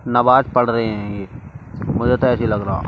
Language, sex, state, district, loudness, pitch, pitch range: Hindi, male, Delhi, New Delhi, -17 LUFS, 115 Hz, 105-125 Hz